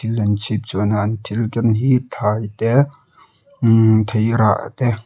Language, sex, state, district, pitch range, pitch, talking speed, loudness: Mizo, male, Mizoram, Aizawl, 110-125 Hz, 110 Hz, 140 wpm, -18 LUFS